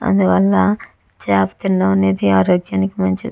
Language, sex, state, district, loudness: Telugu, female, Andhra Pradesh, Chittoor, -16 LUFS